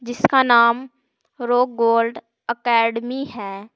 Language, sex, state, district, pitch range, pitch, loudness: Hindi, female, Uttar Pradesh, Saharanpur, 230-260 Hz, 240 Hz, -19 LUFS